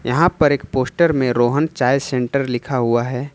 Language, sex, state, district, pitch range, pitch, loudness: Hindi, male, Jharkhand, Ranchi, 125-145 Hz, 130 Hz, -18 LUFS